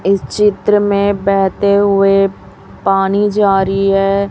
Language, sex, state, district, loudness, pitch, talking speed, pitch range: Hindi, female, Chhattisgarh, Raipur, -13 LUFS, 195 Hz, 125 wpm, 195-200 Hz